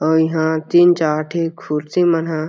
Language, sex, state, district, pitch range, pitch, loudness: Chhattisgarhi, male, Chhattisgarh, Jashpur, 155-170 Hz, 160 Hz, -17 LUFS